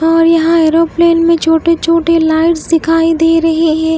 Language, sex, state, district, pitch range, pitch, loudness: Hindi, female, Bihar, Katihar, 325-335 Hz, 330 Hz, -10 LUFS